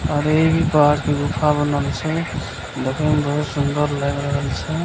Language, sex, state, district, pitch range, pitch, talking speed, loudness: Maithili, male, Bihar, Begusarai, 140-150 Hz, 145 Hz, 185 wpm, -20 LUFS